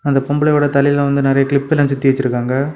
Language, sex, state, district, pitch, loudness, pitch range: Tamil, male, Tamil Nadu, Kanyakumari, 140 Hz, -15 LUFS, 135-145 Hz